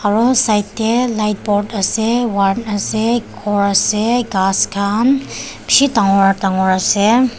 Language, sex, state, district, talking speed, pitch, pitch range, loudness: Nagamese, female, Nagaland, Dimapur, 130 wpm, 210 Hz, 200-235 Hz, -15 LUFS